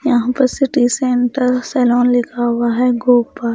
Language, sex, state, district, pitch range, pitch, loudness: Hindi, female, Bihar, Patna, 240-255 Hz, 245 Hz, -15 LUFS